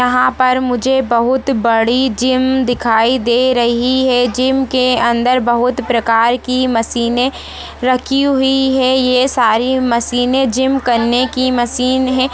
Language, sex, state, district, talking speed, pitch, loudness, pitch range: Hindi, female, Chhattisgarh, Jashpur, 135 wpm, 255 Hz, -13 LUFS, 240-260 Hz